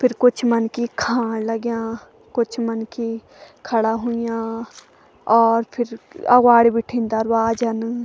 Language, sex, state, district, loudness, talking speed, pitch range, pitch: Garhwali, female, Uttarakhand, Tehri Garhwal, -20 LUFS, 105 wpm, 225-240 Hz, 230 Hz